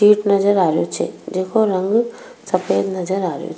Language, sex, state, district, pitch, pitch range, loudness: Rajasthani, female, Rajasthan, Nagaur, 195 Hz, 185-210 Hz, -18 LUFS